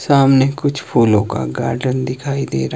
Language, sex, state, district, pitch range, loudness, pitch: Hindi, male, Himachal Pradesh, Shimla, 115-140 Hz, -16 LUFS, 130 Hz